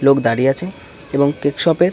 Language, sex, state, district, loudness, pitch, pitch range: Bengali, male, West Bengal, Kolkata, -17 LUFS, 140 Hz, 135-165 Hz